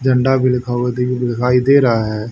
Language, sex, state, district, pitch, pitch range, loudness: Hindi, male, Haryana, Charkhi Dadri, 125 Hz, 120-130 Hz, -15 LUFS